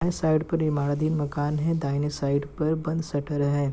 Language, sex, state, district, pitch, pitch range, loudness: Hindi, male, Bihar, Gopalganj, 150 Hz, 145-160 Hz, -26 LUFS